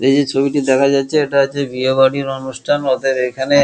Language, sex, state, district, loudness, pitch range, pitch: Bengali, male, West Bengal, Kolkata, -16 LUFS, 130-140 Hz, 135 Hz